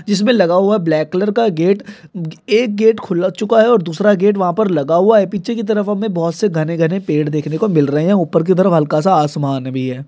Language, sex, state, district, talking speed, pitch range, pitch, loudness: Hindi, male, Bihar, Sitamarhi, 275 wpm, 160-210 Hz, 190 Hz, -15 LUFS